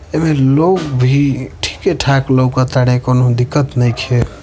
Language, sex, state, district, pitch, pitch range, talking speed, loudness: Bhojpuri, male, Uttar Pradesh, Varanasi, 130 Hz, 125-140 Hz, 135 wpm, -14 LUFS